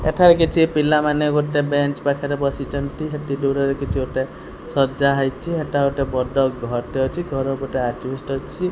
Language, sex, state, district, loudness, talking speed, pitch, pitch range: Odia, male, Odisha, Khordha, -20 LUFS, 160 wpm, 140 Hz, 135-150 Hz